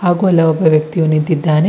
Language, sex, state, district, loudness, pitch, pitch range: Kannada, male, Karnataka, Bidar, -13 LUFS, 160 Hz, 155-175 Hz